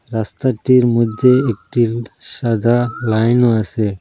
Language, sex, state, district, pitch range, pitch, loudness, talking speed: Bengali, male, Assam, Hailakandi, 110-125 Hz, 120 Hz, -16 LUFS, 90 wpm